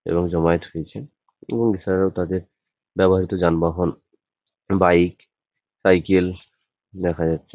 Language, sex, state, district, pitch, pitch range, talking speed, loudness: Bengali, male, West Bengal, Paschim Medinipur, 90 Hz, 85-95 Hz, 95 wpm, -21 LUFS